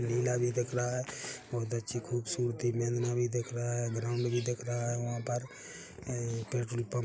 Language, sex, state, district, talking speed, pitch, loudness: Hindi, male, Chhattisgarh, Rajnandgaon, 195 wpm, 120 Hz, -34 LUFS